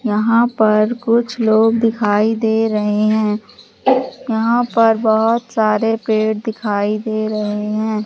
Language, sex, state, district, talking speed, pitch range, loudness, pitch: Hindi, female, Madhya Pradesh, Katni, 125 wpm, 215-230 Hz, -16 LUFS, 220 Hz